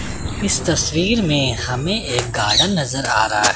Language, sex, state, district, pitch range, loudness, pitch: Hindi, male, Chandigarh, Chandigarh, 105-155 Hz, -17 LUFS, 125 Hz